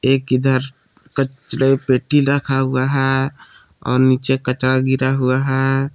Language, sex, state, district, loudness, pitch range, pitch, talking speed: Hindi, male, Jharkhand, Palamu, -17 LUFS, 130-135 Hz, 135 Hz, 130 wpm